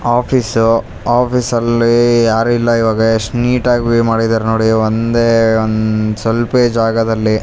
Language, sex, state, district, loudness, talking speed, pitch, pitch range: Kannada, male, Karnataka, Raichur, -13 LUFS, 120 wpm, 115 Hz, 110-120 Hz